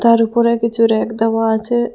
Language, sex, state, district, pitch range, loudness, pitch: Bengali, female, Assam, Hailakandi, 225-235 Hz, -15 LUFS, 230 Hz